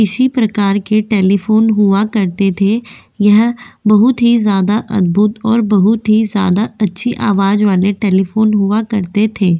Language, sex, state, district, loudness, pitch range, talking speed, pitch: Hindi, female, Goa, North and South Goa, -13 LUFS, 200-220 Hz, 145 wpm, 210 Hz